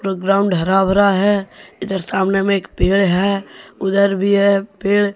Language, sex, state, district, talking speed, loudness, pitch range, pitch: Hindi, male, Jharkhand, Deoghar, 160 wpm, -16 LUFS, 195-200 Hz, 195 Hz